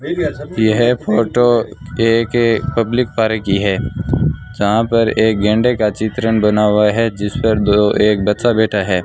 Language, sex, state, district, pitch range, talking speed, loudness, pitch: Hindi, male, Rajasthan, Bikaner, 105-115 Hz, 150 wpm, -15 LUFS, 110 Hz